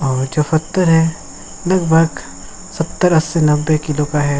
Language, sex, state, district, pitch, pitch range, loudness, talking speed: Hindi, male, Jharkhand, Sahebganj, 160 Hz, 150-165 Hz, -16 LUFS, 150 wpm